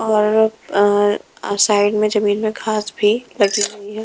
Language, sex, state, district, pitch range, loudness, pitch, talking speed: Hindi, female, Chhattisgarh, Raipur, 205-215 Hz, -17 LUFS, 210 Hz, 150 wpm